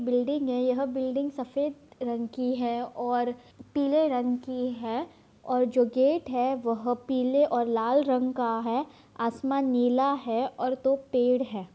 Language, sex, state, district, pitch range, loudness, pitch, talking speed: Hindi, female, Bihar, Vaishali, 245-270 Hz, -28 LUFS, 255 Hz, 160 wpm